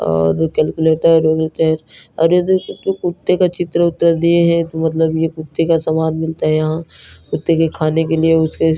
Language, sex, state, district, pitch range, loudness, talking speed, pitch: Hindi, male, Chhattisgarh, Narayanpur, 160-170 Hz, -16 LUFS, 200 wpm, 160 Hz